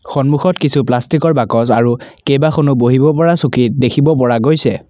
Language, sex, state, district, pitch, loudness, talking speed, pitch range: Assamese, male, Assam, Kamrup Metropolitan, 140 Hz, -13 LUFS, 145 wpm, 120-155 Hz